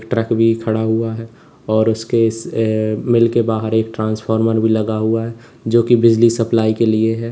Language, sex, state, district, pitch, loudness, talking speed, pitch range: Hindi, male, Uttar Pradesh, Lalitpur, 115 Hz, -16 LUFS, 190 wpm, 110-115 Hz